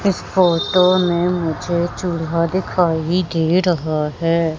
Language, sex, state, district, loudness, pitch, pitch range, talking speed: Hindi, female, Madhya Pradesh, Katni, -18 LUFS, 175 Hz, 165-180 Hz, 115 wpm